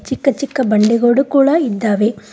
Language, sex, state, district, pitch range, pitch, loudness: Kannada, female, Karnataka, Koppal, 215-275 Hz, 250 Hz, -14 LUFS